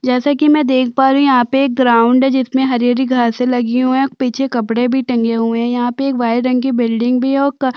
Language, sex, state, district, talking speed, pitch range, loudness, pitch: Hindi, female, Chhattisgarh, Sukma, 270 wpm, 245-265 Hz, -14 LUFS, 255 Hz